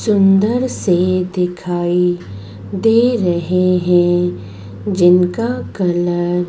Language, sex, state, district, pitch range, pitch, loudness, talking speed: Hindi, male, Madhya Pradesh, Dhar, 175-195 Hz, 180 Hz, -15 LUFS, 85 wpm